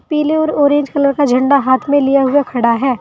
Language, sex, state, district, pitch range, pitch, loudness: Hindi, female, Uttar Pradesh, Saharanpur, 260-290 Hz, 280 Hz, -13 LUFS